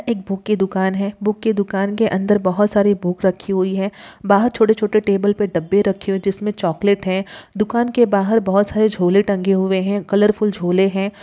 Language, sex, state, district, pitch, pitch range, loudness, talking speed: Hindi, female, Bihar, Jahanabad, 200 Hz, 195-210 Hz, -18 LUFS, 205 wpm